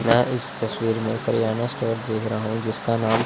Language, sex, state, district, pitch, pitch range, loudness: Hindi, male, Chandigarh, Chandigarh, 115 Hz, 110-115 Hz, -24 LUFS